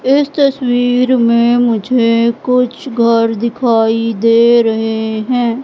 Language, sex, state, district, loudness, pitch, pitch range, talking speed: Hindi, female, Madhya Pradesh, Katni, -12 LUFS, 235 Hz, 230-250 Hz, 105 wpm